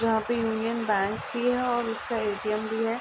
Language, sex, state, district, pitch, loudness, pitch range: Hindi, female, Uttar Pradesh, Ghazipur, 225 Hz, -28 LUFS, 215-235 Hz